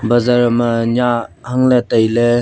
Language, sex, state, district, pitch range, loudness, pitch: Wancho, male, Arunachal Pradesh, Longding, 115-125 Hz, -14 LUFS, 120 Hz